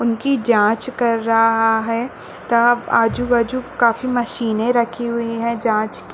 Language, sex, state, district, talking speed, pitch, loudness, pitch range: Hindi, female, Chhattisgarh, Balrampur, 145 wpm, 235 Hz, -18 LUFS, 225-240 Hz